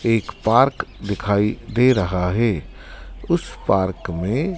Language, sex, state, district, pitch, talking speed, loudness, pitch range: Hindi, male, Madhya Pradesh, Dhar, 105 Hz, 120 wpm, -20 LUFS, 95-120 Hz